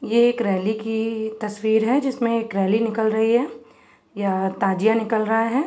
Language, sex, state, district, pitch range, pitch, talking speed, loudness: Hindi, female, Uttar Pradesh, Jalaun, 210-230 Hz, 220 Hz, 180 wpm, -21 LUFS